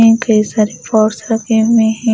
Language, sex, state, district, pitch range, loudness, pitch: Hindi, female, Delhi, New Delhi, 220-225 Hz, -13 LUFS, 225 Hz